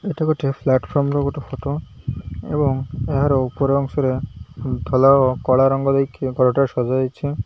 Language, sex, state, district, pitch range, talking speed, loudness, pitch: Odia, male, Odisha, Malkangiri, 130-140 Hz, 155 wpm, -19 LUFS, 135 Hz